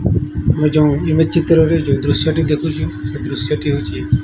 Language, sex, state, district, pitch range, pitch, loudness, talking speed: Odia, male, Odisha, Nuapada, 140-160 Hz, 150 Hz, -16 LUFS, 200 wpm